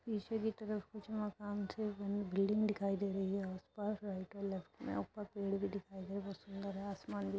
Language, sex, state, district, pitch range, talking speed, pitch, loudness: Hindi, female, Uttar Pradesh, Etah, 195-210 Hz, 235 wpm, 200 Hz, -41 LUFS